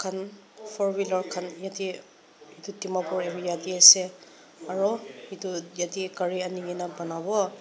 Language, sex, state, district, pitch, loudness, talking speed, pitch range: Nagamese, female, Nagaland, Dimapur, 185 Hz, -24 LUFS, 120 wpm, 180-195 Hz